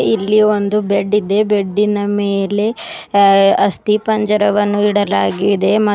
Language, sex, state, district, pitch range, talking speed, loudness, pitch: Kannada, female, Karnataka, Bidar, 200-210 Hz, 120 wpm, -14 LUFS, 205 Hz